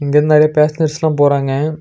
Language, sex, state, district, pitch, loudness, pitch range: Tamil, male, Tamil Nadu, Nilgiris, 150 Hz, -13 LUFS, 145-155 Hz